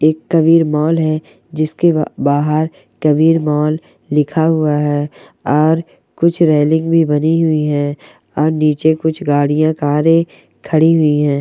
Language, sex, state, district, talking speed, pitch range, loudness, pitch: Hindi, female, Uttar Pradesh, Gorakhpur, 140 wpm, 150-160 Hz, -14 LUFS, 155 Hz